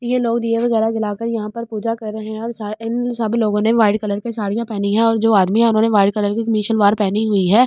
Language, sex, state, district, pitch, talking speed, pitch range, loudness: Hindi, female, Delhi, New Delhi, 220 Hz, 265 wpm, 210-230 Hz, -18 LUFS